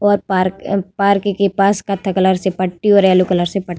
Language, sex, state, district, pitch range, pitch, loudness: Hindi, female, Uttar Pradesh, Varanasi, 185-200 Hz, 195 Hz, -15 LUFS